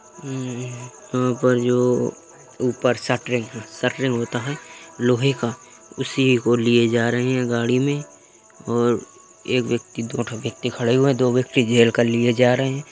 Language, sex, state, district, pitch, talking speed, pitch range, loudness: Hindi, male, Uttar Pradesh, Etah, 125 Hz, 160 wpm, 120-130 Hz, -21 LUFS